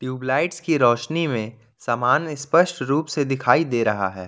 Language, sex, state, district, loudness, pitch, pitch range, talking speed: Hindi, male, Jharkhand, Ranchi, -21 LUFS, 130 Hz, 120-155 Hz, 170 wpm